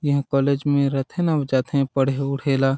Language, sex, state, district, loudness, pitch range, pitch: Chhattisgarhi, male, Chhattisgarh, Sarguja, -21 LUFS, 135-140 Hz, 140 Hz